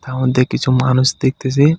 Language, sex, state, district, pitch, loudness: Bengali, male, West Bengal, Alipurduar, 130 Hz, -15 LUFS